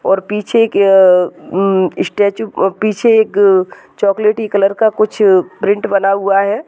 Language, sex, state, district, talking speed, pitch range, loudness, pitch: Hindi, female, Maharashtra, Nagpur, 155 wpm, 195-215 Hz, -13 LUFS, 200 Hz